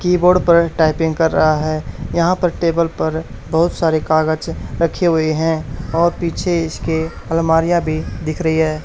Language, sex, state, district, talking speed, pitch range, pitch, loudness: Hindi, male, Haryana, Charkhi Dadri, 165 wpm, 155-170 Hz, 160 Hz, -17 LUFS